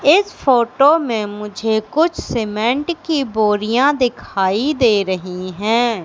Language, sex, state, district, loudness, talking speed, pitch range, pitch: Hindi, female, Madhya Pradesh, Katni, -17 LUFS, 120 wpm, 210-275 Hz, 230 Hz